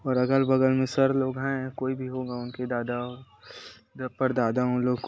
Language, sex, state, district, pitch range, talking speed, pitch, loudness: Hindi, male, Chhattisgarh, Korba, 125-130 Hz, 175 wpm, 130 Hz, -27 LUFS